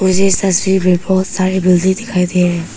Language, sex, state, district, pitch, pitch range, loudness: Hindi, female, Arunachal Pradesh, Papum Pare, 185 Hz, 180-190 Hz, -13 LUFS